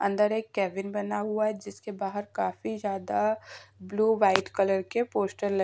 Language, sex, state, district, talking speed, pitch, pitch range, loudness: Hindi, female, Madhya Pradesh, Dhar, 170 wpm, 205 Hz, 195-215 Hz, -29 LUFS